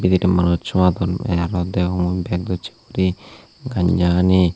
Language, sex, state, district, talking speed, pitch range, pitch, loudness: Chakma, male, Tripura, Unakoti, 145 wpm, 90-95 Hz, 90 Hz, -19 LUFS